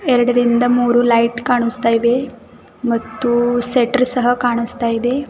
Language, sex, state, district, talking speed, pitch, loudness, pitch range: Kannada, female, Karnataka, Bidar, 90 wpm, 245 Hz, -16 LUFS, 235-245 Hz